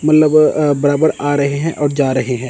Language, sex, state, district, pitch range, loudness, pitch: Hindi, male, Chandigarh, Chandigarh, 140-155 Hz, -14 LUFS, 145 Hz